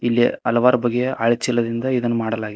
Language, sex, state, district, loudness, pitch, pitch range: Kannada, male, Karnataka, Koppal, -19 LUFS, 120 Hz, 115-125 Hz